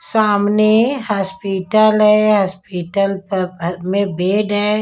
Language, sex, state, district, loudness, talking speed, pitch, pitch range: Hindi, female, Punjab, Kapurthala, -16 LUFS, 110 wpm, 200 Hz, 190-215 Hz